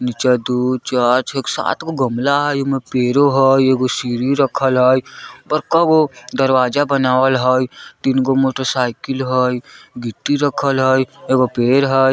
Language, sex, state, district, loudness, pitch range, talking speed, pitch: Bajjika, male, Bihar, Vaishali, -16 LUFS, 125-135 Hz, 145 wpm, 130 Hz